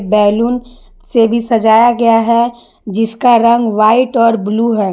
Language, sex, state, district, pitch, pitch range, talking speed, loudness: Hindi, female, Jharkhand, Garhwa, 230 Hz, 220-235 Hz, 145 wpm, -12 LUFS